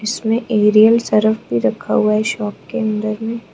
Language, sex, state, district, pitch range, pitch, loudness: Hindi, female, Arunachal Pradesh, Lower Dibang Valley, 210-225 Hz, 215 Hz, -16 LUFS